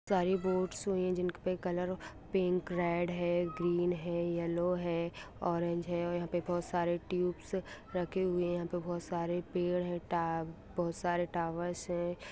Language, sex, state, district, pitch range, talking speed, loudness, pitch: Hindi, female, Bihar, Saharsa, 170-180 Hz, 170 wpm, -35 LUFS, 175 Hz